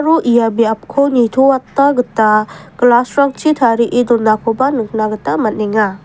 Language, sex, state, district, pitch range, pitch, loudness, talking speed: Garo, female, Meghalaya, West Garo Hills, 215-265 Hz, 235 Hz, -13 LUFS, 100 wpm